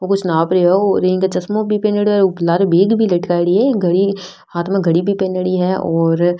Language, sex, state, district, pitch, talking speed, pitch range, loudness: Rajasthani, female, Rajasthan, Nagaur, 185 Hz, 235 wpm, 175-195 Hz, -15 LUFS